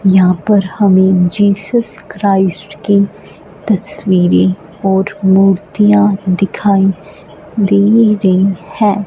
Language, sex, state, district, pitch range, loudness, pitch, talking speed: Hindi, female, Punjab, Fazilka, 190-205 Hz, -12 LUFS, 195 Hz, 85 wpm